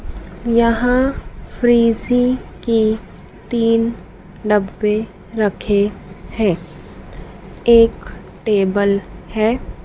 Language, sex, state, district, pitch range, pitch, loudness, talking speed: Hindi, female, Madhya Pradesh, Dhar, 200-235 Hz, 220 Hz, -17 LUFS, 60 wpm